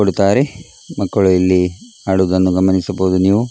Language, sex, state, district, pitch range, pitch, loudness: Kannada, male, Karnataka, Dakshina Kannada, 95-100 Hz, 95 Hz, -15 LUFS